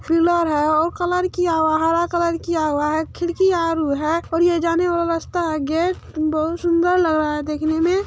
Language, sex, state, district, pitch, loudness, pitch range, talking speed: Hindi, female, Bihar, Begusarai, 335 Hz, -19 LUFS, 315-345 Hz, 210 wpm